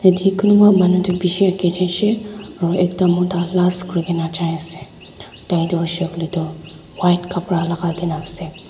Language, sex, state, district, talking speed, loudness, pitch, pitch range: Nagamese, female, Nagaland, Dimapur, 170 wpm, -18 LUFS, 175 Hz, 170-185 Hz